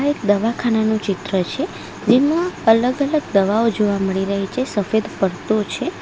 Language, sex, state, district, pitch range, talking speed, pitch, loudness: Gujarati, female, Gujarat, Valsad, 200-245 Hz, 160 wpm, 220 Hz, -19 LUFS